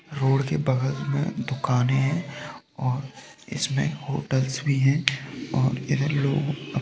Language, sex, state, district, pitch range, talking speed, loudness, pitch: Hindi, male, Rajasthan, Nagaur, 130-145 Hz, 130 wpm, -25 LUFS, 140 Hz